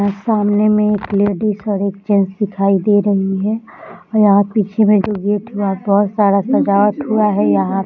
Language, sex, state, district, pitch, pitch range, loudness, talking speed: Hindi, female, Bihar, Samastipur, 205 Hz, 200-210 Hz, -15 LUFS, 205 wpm